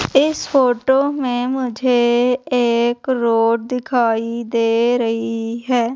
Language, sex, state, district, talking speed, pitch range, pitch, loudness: Hindi, female, Madhya Pradesh, Umaria, 100 wpm, 230-255 Hz, 240 Hz, -17 LUFS